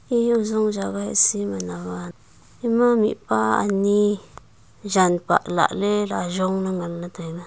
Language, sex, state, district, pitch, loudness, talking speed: Wancho, female, Arunachal Pradesh, Longding, 175 Hz, -21 LUFS, 145 wpm